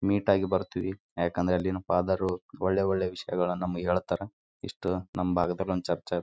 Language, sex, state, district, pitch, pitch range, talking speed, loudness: Kannada, male, Karnataka, Raichur, 90 Hz, 90-95 Hz, 155 wpm, -29 LUFS